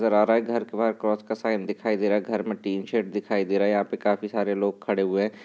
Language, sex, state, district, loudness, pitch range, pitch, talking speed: Hindi, male, Bihar, Darbhanga, -25 LUFS, 100-110 Hz, 105 Hz, 265 wpm